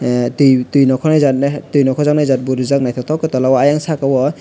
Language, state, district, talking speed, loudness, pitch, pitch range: Kokborok, Tripura, West Tripura, 150 wpm, -14 LUFS, 135 Hz, 130-145 Hz